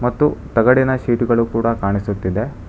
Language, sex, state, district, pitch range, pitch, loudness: Kannada, male, Karnataka, Bangalore, 105-125 Hz, 115 Hz, -17 LUFS